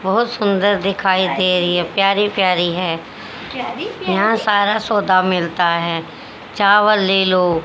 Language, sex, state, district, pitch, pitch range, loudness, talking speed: Hindi, female, Haryana, Jhajjar, 190 Hz, 180-205 Hz, -16 LUFS, 135 wpm